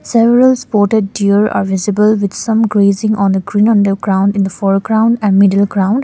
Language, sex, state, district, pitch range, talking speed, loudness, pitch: English, female, Sikkim, Gangtok, 195-220 Hz, 200 wpm, -12 LUFS, 205 Hz